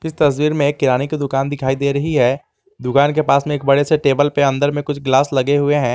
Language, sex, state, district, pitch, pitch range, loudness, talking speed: Hindi, male, Jharkhand, Garhwa, 145 Hz, 140-145 Hz, -16 LUFS, 250 wpm